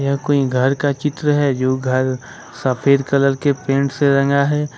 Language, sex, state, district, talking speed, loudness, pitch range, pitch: Hindi, male, Jharkhand, Ranchi, 190 wpm, -17 LUFS, 130-145 Hz, 140 Hz